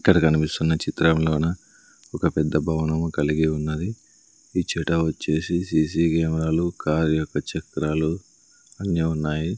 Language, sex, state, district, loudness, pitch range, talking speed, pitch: Telugu, male, Andhra Pradesh, Sri Satya Sai, -23 LUFS, 80-85 Hz, 105 wpm, 80 Hz